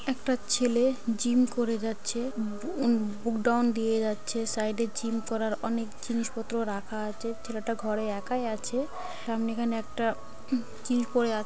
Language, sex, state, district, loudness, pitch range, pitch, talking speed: Bengali, female, West Bengal, Kolkata, -30 LUFS, 220-240 Hz, 230 Hz, 140 wpm